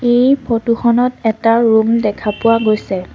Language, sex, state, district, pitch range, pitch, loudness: Assamese, female, Assam, Sonitpur, 220-240 Hz, 230 Hz, -14 LUFS